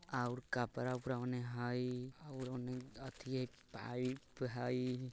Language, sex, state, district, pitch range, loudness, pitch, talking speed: Bajjika, male, Bihar, Vaishali, 125-130 Hz, -43 LUFS, 125 Hz, 115 wpm